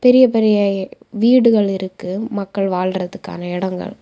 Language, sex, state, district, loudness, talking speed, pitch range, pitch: Tamil, female, Tamil Nadu, Kanyakumari, -17 LUFS, 105 wpm, 185-220 Hz, 200 Hz